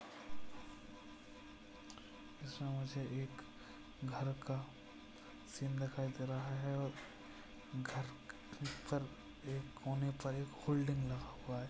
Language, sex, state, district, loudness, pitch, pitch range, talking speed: Hindi, male, Maharashtra, Dhule, -44 LUFS, 135 Hz, 100-140 Hz, 95 wpm